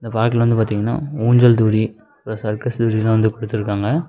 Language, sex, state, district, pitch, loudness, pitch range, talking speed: Tamil, male, Tamil Nadu, Namakkal, 110 Hz, -17 LUFS, 110-115 Hz, 145 wpm